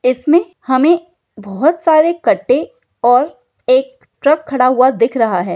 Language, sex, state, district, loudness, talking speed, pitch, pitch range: Hindi, female, Bihar, Saharsa, -14 LUFS, 140 wpm, 285 Hz, 250-335 Hz